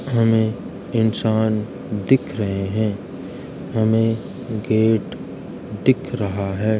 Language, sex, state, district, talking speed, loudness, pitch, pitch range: Hindi, male, Uttar Pradesh, Jalaun, 90 wpm, -21 LUFS, 110 Hz, 100-115 Hz